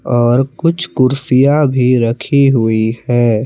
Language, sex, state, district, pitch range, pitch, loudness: Hindi, male, Jharkhand, Palamu, 120-140 Hz, 130 Hz, -13 LUFS